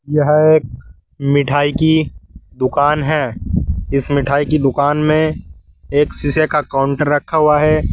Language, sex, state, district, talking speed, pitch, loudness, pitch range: Hindi, male, Uttar Pradesh, Saharanpur, 135 wpm, 145 Hz, -15 LUFS, 135-150 Hz